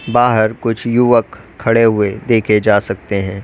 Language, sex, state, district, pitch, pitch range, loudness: Hindi, male, Uttar Pradesh, Lalitpur, 110 Hz, 105-115 Hz, -14 LUFS